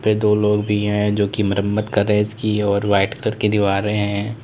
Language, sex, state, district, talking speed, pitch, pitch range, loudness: Hindi, male, Uttar Pradesh, Lalitpur, 245 wpm, 105 Hz, 100-105 Hz, -19 LUFS